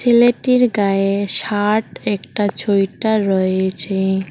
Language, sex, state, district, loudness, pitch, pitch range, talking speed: Bengali, female, West Bengal, Cooch Behar, -16 LUFS, 200 Hz, 190-220 Hz, 85 wpm